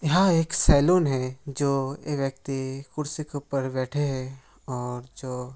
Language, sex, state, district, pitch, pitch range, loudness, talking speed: Hindi, male, Bihar, Araria, 135 Hz, 130-145 Hz, -26 LUFS, 160 wpm